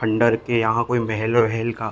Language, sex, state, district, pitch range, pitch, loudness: Hindi, male, Bihar, Darbhanga, 110-120 Hz, 115 Hz, -20 LUFS